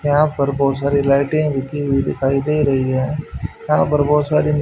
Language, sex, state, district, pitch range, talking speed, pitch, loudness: Hindi, male, Haryana, Rohtak, 140-150 Hz, 195 wpm, 140 Hz, -17 LUFS